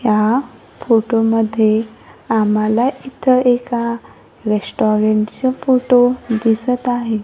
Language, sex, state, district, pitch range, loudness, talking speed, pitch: Marathi, female, Maharashtra, Gondia, 220-250 Hz, -16 LUFS, 90 wpm, 230 Hz